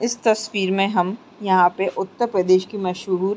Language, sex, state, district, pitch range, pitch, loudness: Hindi, female, Uttarakhand, Tehri Garhwal, 185-215 Hz, 190 Hz, -20 LUFS